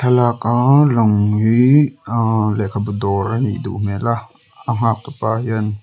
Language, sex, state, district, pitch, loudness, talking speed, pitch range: Mizo, male, Mizoram, Aizawl, 115 Hz, -17 LUFS, 145 wpm, 105-120 Hz